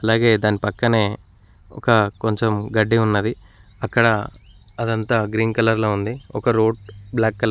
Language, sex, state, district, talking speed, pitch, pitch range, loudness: Telugu, male, Telangana, Mahabubabad, 135 wpm, 110 Hz, 105-115 Hz, -20 LUFS